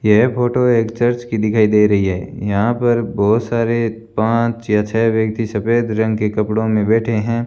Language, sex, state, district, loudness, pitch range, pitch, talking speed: Hindi, male, Rajasthan, Bikaner, -16 LUFS, 105-115 Hz, 110 Hz, 190 wpm